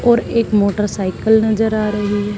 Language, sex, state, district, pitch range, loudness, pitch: Hindi, female, Haryana, Charkhi Dadri, 205-220 Hz, -16 LUFS, 210 Hz